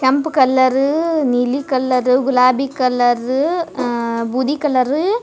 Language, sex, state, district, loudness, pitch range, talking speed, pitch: Kannada, female, Karnataka, Dharwad, -16 LUFS, 250-285 Hz, 150 wpm, 260 Hz